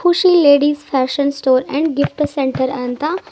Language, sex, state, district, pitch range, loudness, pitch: Kannada, female, Karnataka, Bidar, 265-305 Hz, -15 LUFS, 285 Hz